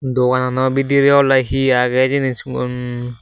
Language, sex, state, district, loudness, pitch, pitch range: Chakma, male, Tripura, Dhalai, -16 LUFS, 130 Hz, 125-135 Hz